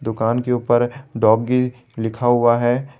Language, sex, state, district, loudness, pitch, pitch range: Hindi, male, Jharkhand, Garhwa, -18 LUFS, 120 Hz, 115-125 Hz